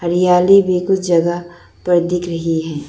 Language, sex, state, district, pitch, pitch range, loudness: Hindi, female, Arunachal Pradesh, Lower Dibang Valley, 175 Hz, 170-180 Hz, -15 LUFS